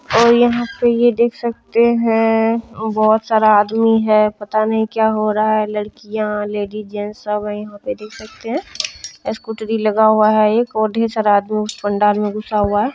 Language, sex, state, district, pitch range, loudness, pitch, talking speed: Maithili, female, Bihar, Kishanganj, 210-225 Hz, -16 LUFS, 215 Hz, 185 wpm